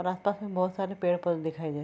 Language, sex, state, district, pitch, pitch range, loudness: Hindi, female, Bihar, Araria, 180 Hz, 165-195 Hz, -30 LUFS